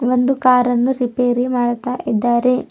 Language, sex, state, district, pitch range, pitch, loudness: Kannada, female, Karnataka, Bidar, 240-250 Hz, 250 Hz, -17 LUFS